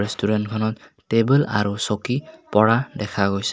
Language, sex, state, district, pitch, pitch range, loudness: Assamese, male, Assam, Kamrup Metropolitan, 110 Hz, 105-125 Hz, -21 LUFS